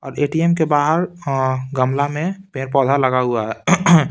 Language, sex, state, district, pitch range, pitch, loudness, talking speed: Hindi, male, Bihar, Patna, 130-165 Hz, 140 Hz, -18 LUFS, 145 wpm